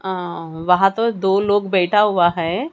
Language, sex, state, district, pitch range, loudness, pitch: Hindi, female, Haryana, Charkhi Dadri, 175-205 Hz, -18 LUFS, 190 Hz